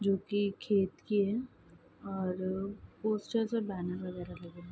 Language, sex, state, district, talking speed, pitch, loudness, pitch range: Hindi, female, Bihar, Saharsa, 175 wpm, 195 Hz, -34 LUFS, 185-210 Hz